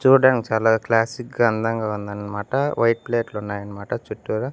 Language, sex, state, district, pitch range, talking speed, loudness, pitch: Telugu, male, Andhra Pradesh, Annamaya, 105-120 Hz, 130 wpm, -22 LUFS, 115 Hz